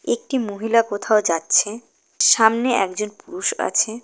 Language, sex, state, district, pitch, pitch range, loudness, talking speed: Bengali, female, West Bengal, Cooch Behar, 220 Hz, 205-235 Hz, -19 LUFS, 120 wpm